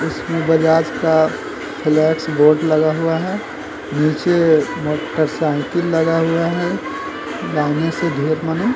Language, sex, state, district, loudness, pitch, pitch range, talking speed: Hindi, male, Uttar Pradesh, Gorakhpur, -17 LUFS, 160 Hz, 155-165 Hz, 110 wpm